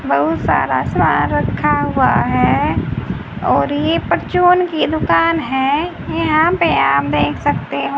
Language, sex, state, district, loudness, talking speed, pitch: Hindi, female, Haryana, Charkhi Dadri, -15 LUFS, 135 wpm, 300 Hz